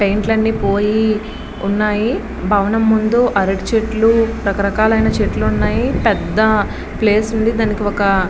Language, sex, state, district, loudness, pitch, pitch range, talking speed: Telugu, female, Andhra Pradesh, Srikakulam, -16 LUFS, 215 Hz, 205-220 Hz, 125 wpm